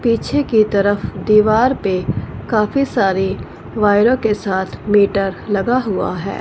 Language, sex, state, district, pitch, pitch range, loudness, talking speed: Hindi, female, Punjab, Fazilka, 205 Hz, 190-225 Hz, -16 LUFS, 130 wpm